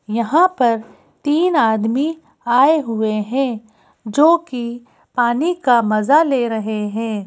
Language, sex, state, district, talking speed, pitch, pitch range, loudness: Hindi, female, Madhya Pradesh, Bhopal, 115 wpm, 240 Hz, 220-295 Hz, -17 LUFS